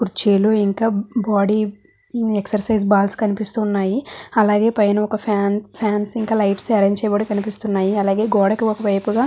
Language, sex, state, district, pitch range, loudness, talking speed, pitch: Telugu, female, Andhra Pradesh, Visakhapatnam, 200-220 Hz, -18 LUFS, 135 wpm, 210 Hz